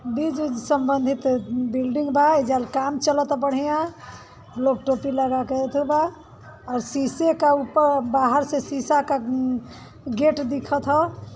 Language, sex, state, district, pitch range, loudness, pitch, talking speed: Bhojpuri, female, Uttar Pradesh, Varanasi, 260-295 Hz, -22 LUFS, 275 Hz, 125 wpm